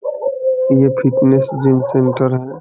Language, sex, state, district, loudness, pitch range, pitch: Hindi, male, Bihar, Saran, -15 LUFS, 130-140 Hz, 135 Hz